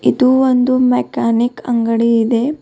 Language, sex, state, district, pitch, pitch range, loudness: Kannada, female, Karnataka, Bidar, 245 Hz, 235-255 Hz, -14 LUFS